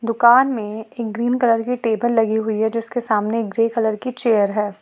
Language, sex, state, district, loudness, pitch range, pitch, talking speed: Hindi, female, Jharkhand, Ranchi, -19 LUFS, 220-240 Hz, 230 Hz, 210 wpm